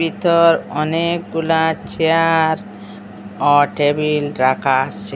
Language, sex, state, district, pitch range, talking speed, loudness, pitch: Bengali, female, Assam, Hailakandi, 130-165 Hz, 80 wpm, -16 LUFS, 150 Hz